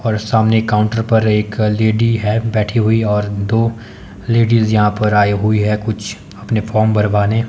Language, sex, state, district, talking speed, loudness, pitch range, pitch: Hindi, male, Himachal Pradesh, Shimla, 170 wpm, -15 LUFS, 105-110 Hz, 110 Hz